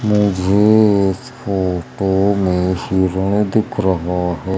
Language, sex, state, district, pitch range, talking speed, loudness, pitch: Hindi, male, Madhya Pradesh, Umaria, 95-105 Hz, 105 wpm, -16 LUFS, 95 Hz